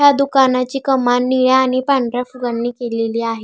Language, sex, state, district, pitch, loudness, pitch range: Marathi, female, Maharashtra, Pune, 255 Hz, -16 LUFS, 240-265 Hz